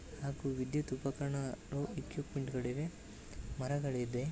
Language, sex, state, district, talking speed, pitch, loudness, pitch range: Kannada, male, Karnataka, Bellary, 85 wpm, 140 Hz, -40 LUFS, 130-145 Hz